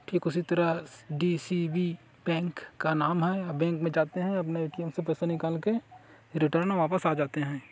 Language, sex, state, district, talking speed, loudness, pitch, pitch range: Hindi, male, Chhattisgarh, Kabirdham, 170 wpm, -30 LUFS, 165 Hz, 160-175 Hz